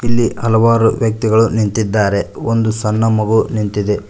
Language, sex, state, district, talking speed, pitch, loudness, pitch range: Kannada, male, Karnataka, Koppal, 115 wpm, 110 Hz, -15 LUFS, 105-115 Hz